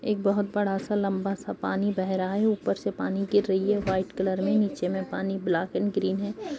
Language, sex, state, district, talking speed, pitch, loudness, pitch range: Hindi, female, Uttar Pradesh, Jalaun, 235 wpm, 195 Hz, -27 LUFS, 190-205 Hz